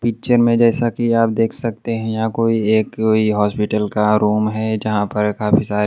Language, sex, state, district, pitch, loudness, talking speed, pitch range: Hindi, male, Bihar, Kaimur, 110 Hz, -17 LUFS, 195 wpm, 105-115 Hz